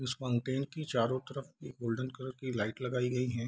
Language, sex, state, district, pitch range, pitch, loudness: Hindi, male, Bihar, Darbhanga, 120-130 Hz, 130 Hz, -35 LUFS